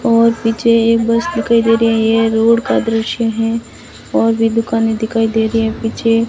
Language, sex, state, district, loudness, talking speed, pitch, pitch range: Hindi, female, Rajasthan, Barmer, -14 LUFS, 210 wpm, 225 Hz, 225-230 Hz